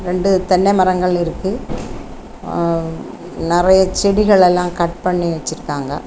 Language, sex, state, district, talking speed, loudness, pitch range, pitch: Tamil, female, Tamil Nadu, Kanyakumari, 110 wpm, -16 LUFS, 170-190 Hz, 180 Hz